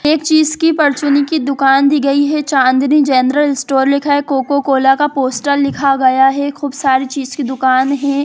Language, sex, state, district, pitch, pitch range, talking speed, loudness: Hindi, female, Bihar, Sitamarhi, 280 Hz, 270-290 Hz, 195 wpm, -13 LUFS